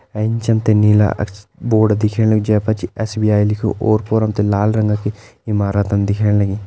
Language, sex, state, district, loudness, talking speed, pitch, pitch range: Kumaoni, male, Uttarakhand, Tehri Garhwal, -16 LUFS, 160 wpm, 105 Hz, 105-110 Hz